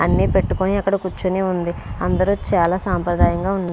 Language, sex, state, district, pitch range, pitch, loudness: Telugu, female, Andhra Pradesh, Srikakulam, 170-190 Hz, 185 Hz, -19 LUFS